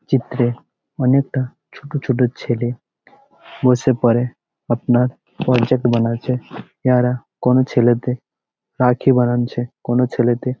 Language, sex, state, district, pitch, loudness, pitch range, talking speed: Bengali, male, West Bengal, Jalpaiguri, 125 Hz, -18 LUFS, 120-130 Hz, 85 wpm